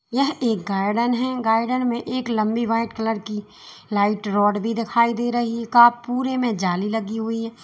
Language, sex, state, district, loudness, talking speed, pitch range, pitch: Hindi, female, Uttar Pradesh, Lalitpur, -21 LUFS, 190 wpm, 215-240 Hz, 230 Hz